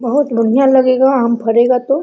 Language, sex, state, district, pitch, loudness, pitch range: Hindi, female, Jharkhand, Sahebganj, 255 Hz, -12 LUFS, 235-270 Hz